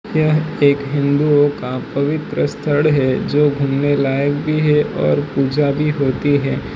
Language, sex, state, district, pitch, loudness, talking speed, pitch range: Hindi, male, Gujarat, Valsad, 145 Hz, -17 LUFS, 150 wpm, 140-150 Hz